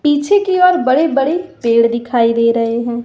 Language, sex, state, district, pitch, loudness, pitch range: Hindi, female, Madhya Pradesh, Umaria, 255 Hz, -14 LUFS, 230-335 Hz